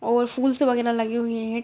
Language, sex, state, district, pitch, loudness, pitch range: Hindi, female, Bihar, Muzaffarpur, 235 Hz, -23 LUFS, 230-250 Hz